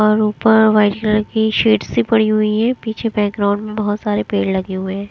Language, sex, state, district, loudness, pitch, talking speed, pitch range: Hindi, female, Himachal Pradesh, Shimla, -16 LUFS, 210 Hz, 225 wpm, 200-215 Hz